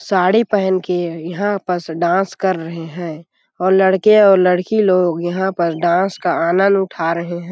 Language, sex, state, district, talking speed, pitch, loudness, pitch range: Hindi, male, Chhattisgarh, Sarguja, 185 wpm, 180 Hz, -16 LUFS, 170-190 Hz